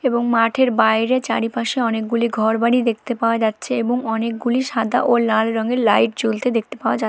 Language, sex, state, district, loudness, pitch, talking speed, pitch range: Bengali, female, West Bengal, Malda, -19 LUFS, 230 Hz, 170 wpm, 225-245 Hz